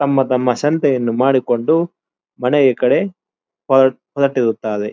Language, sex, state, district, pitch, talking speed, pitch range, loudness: Kannada, male, Karnataka, Dharwad, 135 Hz, 85 wpm, 125-145 Hz, -16 LUFS